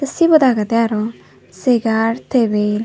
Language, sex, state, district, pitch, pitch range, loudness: Chakma, female, Tripura, Dhalai, 225 Hz, 210-250 Hz, -16 LUFS